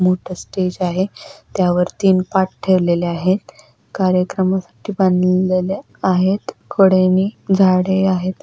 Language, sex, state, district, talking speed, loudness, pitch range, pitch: Marathi, female, Maharashtra, Pune, 100 wpm, -17 LUFS, 185-190 Hz, 185 Hz